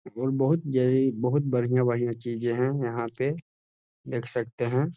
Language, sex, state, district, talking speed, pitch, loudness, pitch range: Hindi, male, Bihar, Jahanabad, 180 wpm, 125 Hz, -27 LUFS, 120-135 Hz